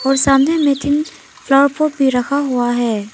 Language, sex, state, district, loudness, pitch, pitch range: Hindi, female, Arunachal Pradesh, Papum Pare, -15 LUFS, 275 Hz, 250-285 Hz